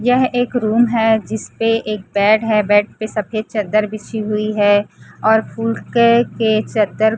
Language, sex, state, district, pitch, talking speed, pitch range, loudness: Hindi, female, Chhattisgarh, Raipur, 220 Hz, 165 wpm, 215-225 Hz, -16 LUFS